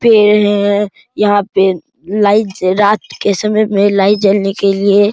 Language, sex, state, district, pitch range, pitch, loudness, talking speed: Hindi, male, Bihar, Araria, 195-210 Hz, 205 Hz, -12 LUFS, 165 wpm